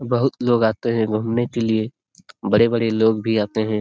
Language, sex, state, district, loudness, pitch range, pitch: Hindi, male, Jharkhand, Sahebganj, -20 LUFS, 110-120 Hz, 115 Hz